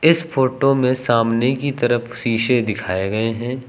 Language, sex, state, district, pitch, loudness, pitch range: Hindi, male, Uttar Pradesh, Lucknow, 125 Hz, -19 LUFS, 115-130 Hz